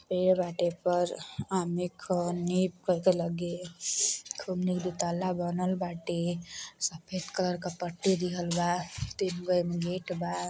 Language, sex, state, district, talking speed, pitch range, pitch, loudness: Bhojpuri, female, Uttar Pradesh, Deoria, 75 wpm, 175-185 Hz, 180 Hz, -31 LUFS